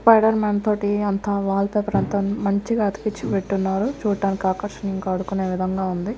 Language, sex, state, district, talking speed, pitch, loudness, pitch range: Telugu, female, Andhra Pradesh, Sri Satya Sai, 145 wpm, 200 Hz, -22 LUFS, 195-210 Hz